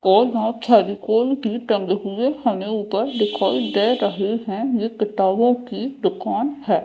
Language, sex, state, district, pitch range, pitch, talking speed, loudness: Hindi, female, Madhya Pradesh, Dhar, 205-240 Hz, 220 Hz, 150 wpm, -20 LUFS